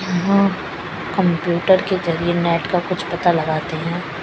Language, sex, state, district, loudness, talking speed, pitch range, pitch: Hindi, female, Chhattisgarh, Raipur, -19 LUFS, 140 wpm, 170-185 Hz, 175 Hz